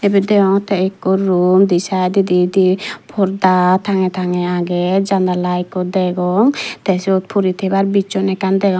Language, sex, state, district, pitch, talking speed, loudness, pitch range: Chakma, female, Tripura, Dhalai, 190 Hz, 150 wpm, -15 LUFS, 180-195 Hz